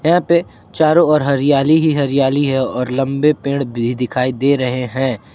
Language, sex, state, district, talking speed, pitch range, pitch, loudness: Hindi, male, Jharkhand, Ranchi, 180 wpm, 130-150 Hz, 140 Hz, -15 LUFS